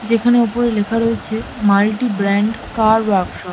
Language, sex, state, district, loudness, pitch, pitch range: Bengali, female, West Bengal, Malda, -16 LUFS, 220 Hz, 205-230 Hz